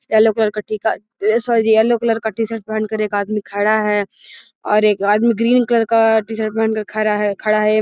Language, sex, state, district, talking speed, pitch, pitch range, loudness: Magahi, female, Bihar, Gaya, 225 wpm, 220 Hz, 210-225 Hz, -17 LUFS